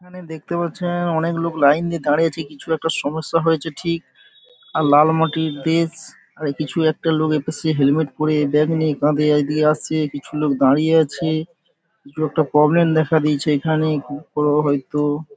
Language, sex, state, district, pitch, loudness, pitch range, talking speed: Bengali, male, West Bengal, Paschim Medinipur, 155 Hz, -19 LUFS, 150-165 Hz, 170 wpm